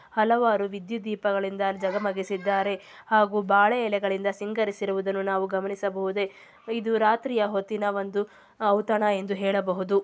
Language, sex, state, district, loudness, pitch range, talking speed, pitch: Kannada, female, Karnataka, Chamarajanagar, -26 LUFS, 195-215 Hz, 110 wpm, 200 Hz